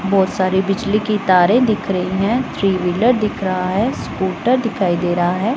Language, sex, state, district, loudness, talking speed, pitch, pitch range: Hindi, female, Punjab, Pathankot, -17 LUFS, 195 wpm, 195 Hz, 185-220 Hz